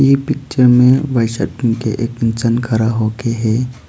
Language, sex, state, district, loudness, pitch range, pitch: Hindi, male, Arunachal Pradesh, Papum Pare, -15 LUFS, 115-125 Hz, 120 Hz